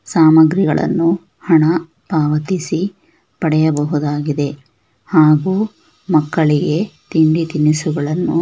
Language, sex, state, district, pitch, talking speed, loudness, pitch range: Kannada, female, Karnataka, Shimoga, 160 Hz, 55 wpm, -15 LUFS, 150-170 Hz